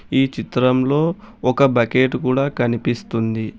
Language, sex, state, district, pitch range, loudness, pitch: Telugu, male, Telangana, Hyderabad, 120-135 Hz, -19 LUFS, 130 Hz